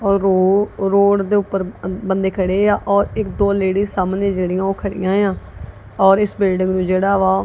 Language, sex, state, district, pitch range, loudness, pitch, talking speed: Punjabi, female, Punjab, Kapurthala, 185-200 Hz, -17 LUFS, 195 Hz, 195 wpm